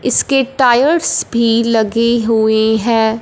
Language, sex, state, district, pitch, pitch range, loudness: Hindi, female, Punjab, Fazilka, 230 Hz, 225-245 Hz, -13 LUFS